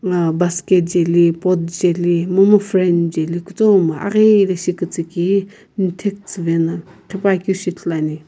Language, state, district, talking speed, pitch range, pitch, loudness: Sumi, Nagaland, Kohima, 140 wpm, 170-195 Hz, 180 Hz, -16 LUFS